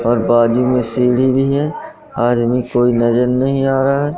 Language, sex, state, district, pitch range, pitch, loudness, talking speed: Hindi, male, Madhya Pradesh, Katni, 120-135 Hz, 125 Hz, -15 LUFS, 170 wpm